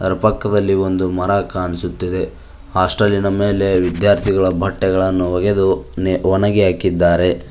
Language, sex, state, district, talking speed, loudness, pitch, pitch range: Kannada, male, Karnataka, Koppal, 90 wpm, -16 LUFS, 95 Hz, 90-100 Hz